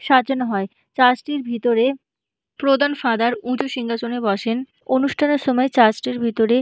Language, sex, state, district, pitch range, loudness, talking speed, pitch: Bengali, female, West Bengal, North 24 Parganas, 235-270 Hz, -20 LUFS, 155 wpm, 250 Hz